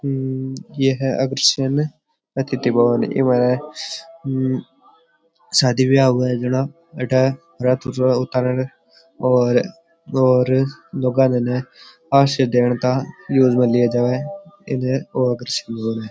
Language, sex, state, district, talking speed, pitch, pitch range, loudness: Rajasthani, male, Rajasthan, Churu, 125 wpm, 130 Hz, 125-140 Hz, -19 LUFS